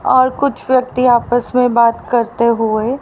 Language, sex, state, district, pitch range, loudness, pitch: Hindi, female, Haryana, Rohtak, 235-255 Hz, -14 LUFS, 245 Hz